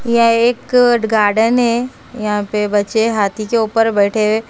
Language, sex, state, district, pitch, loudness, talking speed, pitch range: Hindi, female, Haryana, Rohtak, 225 Hz, -15 LUFS, 175 wpm, 210-235 Hz